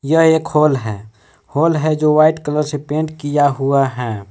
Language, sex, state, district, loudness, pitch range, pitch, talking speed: Hindi, male, Jharkhand, Palamu, -16 LUFS, 130-155 Hz, 145 Hz, 195 wpm